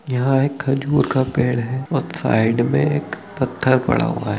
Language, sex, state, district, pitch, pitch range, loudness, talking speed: Hindi, male, Bihar, Araria, 135 Hz, 125-140 Hz, -19 LUFS, 205 wpm